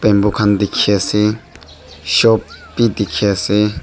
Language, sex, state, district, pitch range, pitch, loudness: Nagamese, male, Nagaland, Dimapur, 90-105 Hz, 105 Hz, -15 LUFS